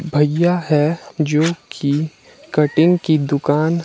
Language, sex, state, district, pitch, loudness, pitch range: Hindi, male, Himachal Pradesh, Shimla, 155 Hz, -17 LUFS, 150-165 Hz